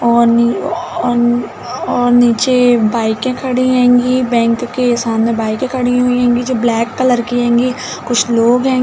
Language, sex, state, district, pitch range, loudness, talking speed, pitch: Hindi, female, Uttar Pradesh, Budaun, 235-255 Hz, -13 LUFS, 165 wpm, 245 Hz